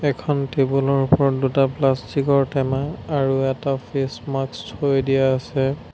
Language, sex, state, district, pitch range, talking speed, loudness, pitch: Assamese, male, Assam, Sonitpur, 135-140 Hz, 150 wpm, -21 LUFS, 135 Hz